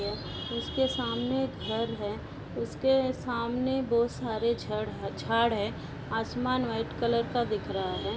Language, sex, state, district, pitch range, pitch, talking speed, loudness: Hindi, female, Uttar Pradesh, Ghazipur, 225-255 Hz, 235 Hz, 140 wpm, -30 LUFS